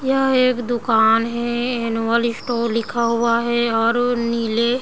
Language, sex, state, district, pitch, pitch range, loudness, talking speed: Hindi, female, Bihar, Sitamarhi, 235 Hz, 230-240 Hz, -19 LUFS, 160 wpm